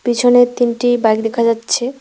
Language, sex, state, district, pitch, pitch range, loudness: Bengali, female, West Bengal, Cooch Behar, 240 Hz, 230-245 Hz, -14 LUFS